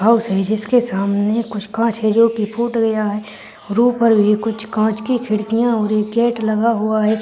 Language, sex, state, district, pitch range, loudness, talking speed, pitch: Hindi, female, Rajasthan, Churu, 215-230 Hz, -17 LUFS, 205 wpm, 220 Hz